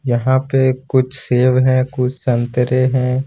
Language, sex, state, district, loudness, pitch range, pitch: Hindi, male, Jharkhand, Ranchi, -16 LUFS, 125-130 Hz, 130 Hz